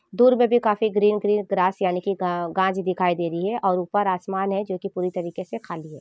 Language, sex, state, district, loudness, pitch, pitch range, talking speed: Hindi, female, Jharkhand, Sahebganj, -23 LUFS, 190 Hz, 180-205 Hz, 250 wpm